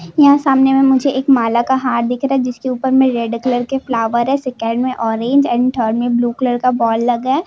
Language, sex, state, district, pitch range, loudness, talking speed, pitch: Hindi, female, Jharkhand, Jamtara, 235-265 Hz, -15 LUFS, 255 wpm, 250 Hz